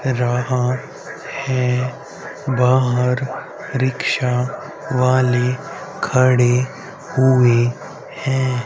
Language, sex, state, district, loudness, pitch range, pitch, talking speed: Hindi, male, Haryana, Rohtak, -18 LUFS, 125-130 Hz, 125 Hz, 55 wpm